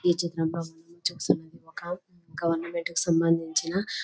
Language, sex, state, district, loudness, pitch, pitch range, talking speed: Telugu, female, Telangana, Nalgonda, -28 LUFS, 170 Hz, 165-175 Hz, 120 wpm